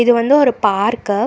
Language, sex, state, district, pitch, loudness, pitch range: Tamil, female, Karnataka, Bangalore, 235 Hz, -14 LUFS, 205-245 Hz